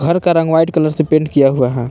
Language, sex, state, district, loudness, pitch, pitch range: Hindi, male, Jharkhand, Palamu, -13 LUFS, 155 Hz, 135-165 Hz